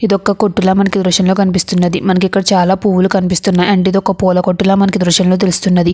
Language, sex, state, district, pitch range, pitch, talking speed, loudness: Telugu, female, Andhra Pradesh, Anantapur, 185-195 Hz, 190 Hz, 190 wpm, -12 LUFS